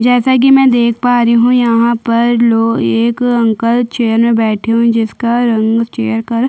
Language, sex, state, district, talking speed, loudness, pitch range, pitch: Hindi, female, Chhattisgarh, Sukma, 230 wpm, -11 LUFS, 230-240 Hz, 235 Hz